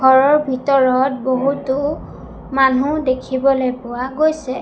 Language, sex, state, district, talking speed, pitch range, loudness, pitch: Assamese, female, Assam, Sonitpur, 90 wpm, 255-275 Hz, -17 LUFS, 265 Hz